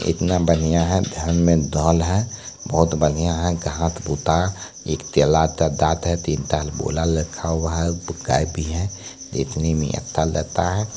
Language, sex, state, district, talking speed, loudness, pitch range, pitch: Maithili, male, Bihar, Supaul, 140 wpm, -21 LUFS, 80-85 Hz, 80 Hz